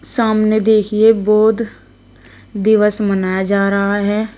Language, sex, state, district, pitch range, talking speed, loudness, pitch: Hindi, female, Uttar Pradesh, Shamli, 200-220 Hz, 110 wpm, -14 LUFS, 215 Hz